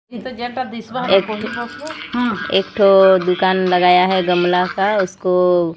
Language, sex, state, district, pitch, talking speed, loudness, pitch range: Hindi, female, Odisha, Sambalpur, 190 Hz, 105 wpm, -16 LUFS, 180-220 Hz